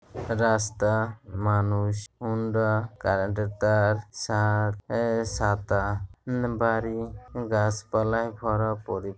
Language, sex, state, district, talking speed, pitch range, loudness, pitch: Bengali, male, West Bengal, Jhargram, 80 wpm, 105-115 Hz, -27 LUFS, 110 Hz